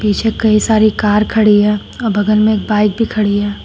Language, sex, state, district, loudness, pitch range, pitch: Hindi, female, Uttar Pradesh, Shamli, -13 LUFS, 210-220 Hz, 215 Hz